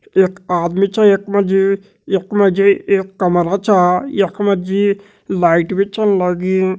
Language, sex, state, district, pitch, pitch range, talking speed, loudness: Hindi, male, Uttarakhand, Tehri Garhwal, 195 Hz, 185-200 Hz, 140 wpm, -15 LUFS